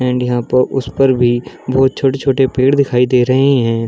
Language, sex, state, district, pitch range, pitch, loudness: Hindi, male, Chhattisgarh, Bilaspur, 125-135 Hz, 130 Hz, -14 LUFS